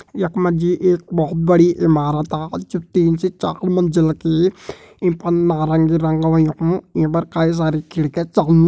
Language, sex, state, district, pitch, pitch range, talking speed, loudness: Hindi, male, Uttarakhand, Tehri Garhwal, 170 Hz, 160-180 Hz, 165 wpm, -17 LUFS